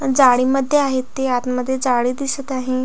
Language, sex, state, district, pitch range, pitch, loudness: Marathi, female, Maharashtra, Pune, 255-270 Hz, 260 Hz, -18 LUFS